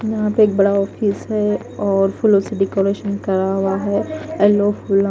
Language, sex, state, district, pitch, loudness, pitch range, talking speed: Hindi, female, Punjab, Kapurthala, 200 Hz, -18 LUFS, 195-210 Hz, 175 wpm